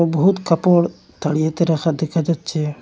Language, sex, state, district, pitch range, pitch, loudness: Bengali, male, Assam, Hailakandi, 155-170 Hz, 165 Hz, -19 LUFS